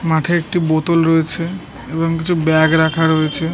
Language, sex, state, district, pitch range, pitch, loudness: Bengali, male, West Bengal, North 24 Parganas, 160-170 Hz, 160 Hz, -16 LUFS